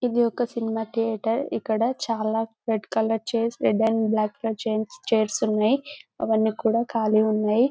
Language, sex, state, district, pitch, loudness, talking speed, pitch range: Telugu, female, Telangana, Karimnagar, 225 Hz, -24 LUFS, 155 wpm, 220-230 Hz